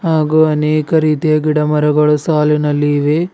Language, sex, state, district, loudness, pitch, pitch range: Kannada, male, Karnataka, Bidar, -13 LUFS, 150 Hz, 150-155 Hz